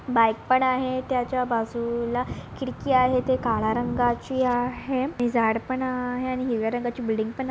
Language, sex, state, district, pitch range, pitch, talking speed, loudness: Marathi, female, Maharashtra, Sindhudurg, 235-255 Hz, 245 Hz, 175 wpm, -25 LUFS